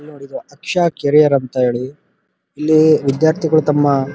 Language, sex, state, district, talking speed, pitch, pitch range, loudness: Kannada, male, Karnataka, Dharwad, 145 wpm, 145 Hz, 140-155 Hz, -15 LUFS